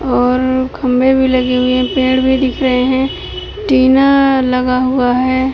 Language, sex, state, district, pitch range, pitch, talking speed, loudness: Hindi, female, Uttar Pradesh, Deoria, 255-265 Hz, 260 Hz, 160 wpm, -13 LUFS